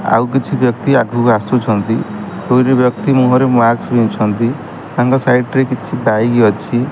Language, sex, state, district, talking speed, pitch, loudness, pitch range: Odia, male, Odisha, Khordha, 140 wpm, 120 Hz, -13 LUFS, 115-130 Hz